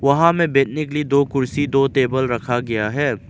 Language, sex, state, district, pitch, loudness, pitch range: Hindi, male, Arunachal Pradesh, Lower Dibang Valley, 135 Hz, -18 LUFS, 130-145 Hz